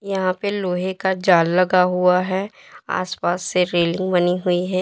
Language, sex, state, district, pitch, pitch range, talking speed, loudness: Hindi, female, Uttar Pradesh, Lalitpur, 185 Hz, 180-190 Hz, 175 wpm, -19 LUFS